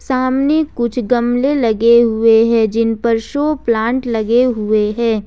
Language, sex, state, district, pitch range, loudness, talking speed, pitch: Hindi, female, Jharkhand, Ranchi, 225-255 Hz, -14 LUFS, 150 wpm, 235 Hz